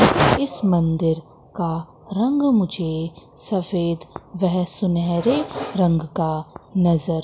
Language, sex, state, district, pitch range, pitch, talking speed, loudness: Hindi, female, Madhya Pradesh, Katni, 165-195 Hz, 175 Hz, 90 wpm, -21 LUFS